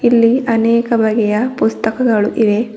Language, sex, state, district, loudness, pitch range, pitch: Kannada, female, Karnataka, Bidar, -14 LUFS, 220-235 Hz, 225 Hz